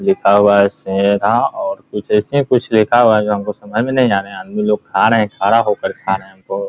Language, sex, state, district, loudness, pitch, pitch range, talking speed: Hindi, male, Bihar, Muzaffarpur, -15 LUFS, 105 Hz, 100-120 Hz, 270 wpm